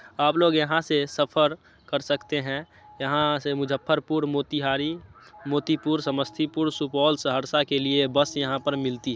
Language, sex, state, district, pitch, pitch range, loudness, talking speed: Hindi, male, Bihar, Muzaffarpur, 145 Hz, 140-155 Hz, -25 LUFS, 145 wpm